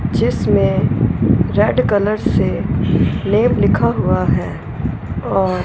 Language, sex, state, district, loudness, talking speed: Hindi, female, Punjab, Fazilka, -16 LUFS, 95 wpm